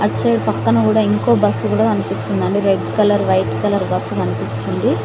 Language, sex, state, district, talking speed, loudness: Telugu, female, Telangana, Mahabubabad, 155 wpm, -16 LUFS